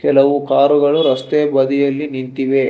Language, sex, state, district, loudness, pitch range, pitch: Kannada, male, Karnataka, Bangalore, -15 LUFS, 135-145 Hz, 140 Hz